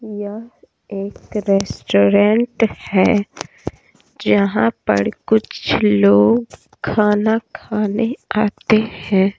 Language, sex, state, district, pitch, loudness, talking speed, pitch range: Hindi, female, Bihar, Patna, 205 Hz, -17 LUFS, 75 wpm, 175-220 Hz